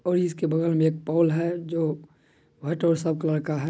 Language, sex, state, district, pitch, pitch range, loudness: Maithili, male, Bihar, Madhepura, 160 Hz, 155-170 Hz, -25 LUFS